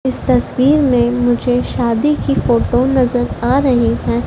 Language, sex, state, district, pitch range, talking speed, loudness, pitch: Hindi, female, Madhya Pradesh, Dhar, 240-260 Hz, 155 wpm, -14 LUFS, 245 Hz